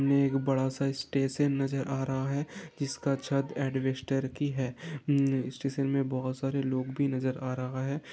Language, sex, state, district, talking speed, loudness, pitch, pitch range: Hindi, male, Rajasthan, Nagaur, 160 wpm, -31 LUFS, 135 Hz, 130-140 Hz